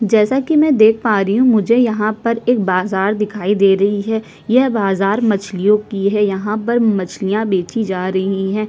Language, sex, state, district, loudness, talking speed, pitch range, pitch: Hindi, female, Chhattisgarh, Sukma, -15 LUFS, 195 wpm, 195-225 Hz, 210 Hz